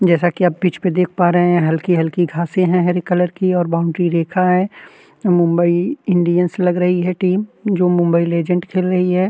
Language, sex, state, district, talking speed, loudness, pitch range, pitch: Hindi, male, Uttarakhand, Tehri Garhwal, 200 wpm, -16 LUFS, 175-185 Hz, 180 Hz